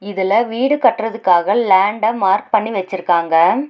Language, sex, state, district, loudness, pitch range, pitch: Tamil, female, Tamil Nadu, Nilgiris, -15 LUFS, 190-225 Hz, 205 Hz